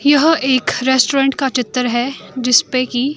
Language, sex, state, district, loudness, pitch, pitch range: Hindi, female, Himachal Pradesh, Shimla, -15 LUFS, 260 Hz, 250-275 Hz